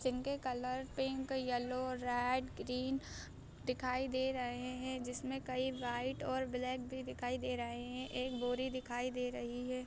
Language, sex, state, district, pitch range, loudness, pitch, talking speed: Hindi, female, Andhra Pradesh, Anantapur, 250-260 Hz, -40 LUFS, 255 Hz, 170 wpm